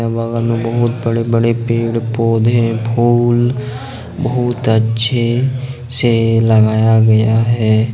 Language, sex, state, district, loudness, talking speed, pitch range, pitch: Hindi, male, Jharkhand, Ranchi, -14 LUFS, 105 wpm, 115-120 Hz, 115 Hz